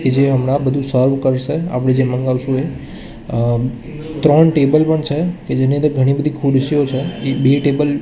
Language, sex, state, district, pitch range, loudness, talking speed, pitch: Gujarati, male, Gujarat, Gandhinagar, 130-150 Hz, -16 LUFS, 185 wpm, 140 Hz